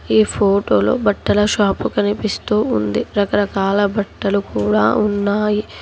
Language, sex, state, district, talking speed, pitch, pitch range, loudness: Telugu, female, Telangana, Hyderabad, 105 wpm, 205 Hz, 195-210 Hz, -17 LUFS